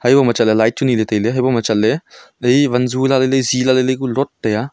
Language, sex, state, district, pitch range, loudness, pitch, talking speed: Wancho, male, Arunachal Pradesh, Longding, 115-130 Hz, -15 LUFS, 125 Hz, 265 wpm